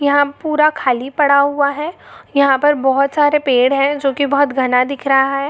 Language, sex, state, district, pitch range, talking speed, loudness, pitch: Hindi, female, Jharkhand, Jamtara, 270-290 Hz, 205 wpm, -15 LUFS, 280 Hz